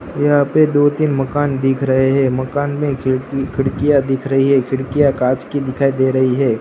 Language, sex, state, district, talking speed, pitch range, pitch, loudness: Hindi, male, Gujarat, Gandhinagar, 200 wpm, 130-145 Hz, 135 Hz, -16 LUFS